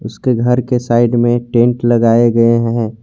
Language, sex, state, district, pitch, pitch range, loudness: Hindi, male, Jharkhand, Garhwa, 120 Hz, 115-120 Hz, -13 LUFS